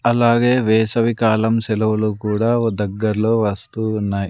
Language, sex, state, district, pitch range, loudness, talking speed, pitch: Telugu, male, Andhra Pradesh, Sri Satya Sai, 105-115 Hz, -18 LUFS, 110 wpm, 110 Hz